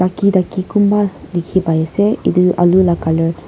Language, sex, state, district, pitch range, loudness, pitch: Nagamese, female, Nagaland, Kohima, 170-200 Hz, -15 LUFS, 180 Hz